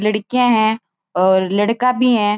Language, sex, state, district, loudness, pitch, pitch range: Marwari, female, Rajasthan, Churu, -16 LUFS, 220 Hz, 205-245 Hz